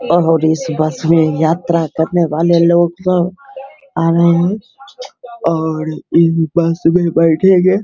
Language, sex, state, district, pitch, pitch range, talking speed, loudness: Hindi, male, Bihar, Begusarai, 170 Hz, 165-185 Hz, 140 wpm, -13 LUFS